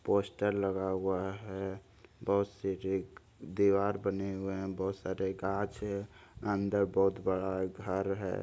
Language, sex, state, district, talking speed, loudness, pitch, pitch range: Hindi, male, Bihar, Lakhisarai, 135 wpm, -34 LUFS, 95 Hz, 95-100 Hz